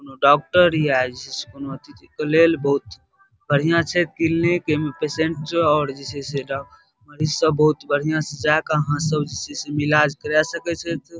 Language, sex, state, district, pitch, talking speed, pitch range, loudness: Maithili, male, Bihar, Darbhanga, 150 Hz, 185 wpm, 140-165 Hz, -20 LUFS